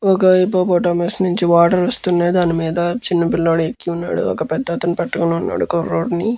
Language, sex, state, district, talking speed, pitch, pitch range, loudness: Telugu, male, Andhra Pradesh, Guntur, 140 wpm, 175 Hz, 170-185 Hz, -17 LUFS